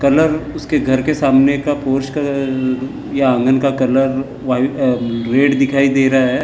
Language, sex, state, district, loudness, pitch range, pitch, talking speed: Hindi, male, Maharashtra, Gondia, -15 LUFS, 130-140 Hz, 135 Hz, 160 wpm